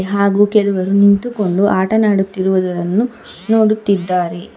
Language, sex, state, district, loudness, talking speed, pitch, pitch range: Kannada, female, Karnataka, Bangalore, -15 LUFS, 65 wpm, 200 Hz, 185-215 Hz